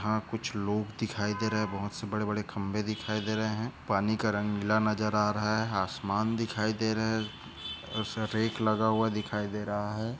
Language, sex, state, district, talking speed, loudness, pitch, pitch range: Hindi, male, Maharashtra, Aurangabad, 195 wpm, -31 LUFS, 110 Hz, 105-110 Hz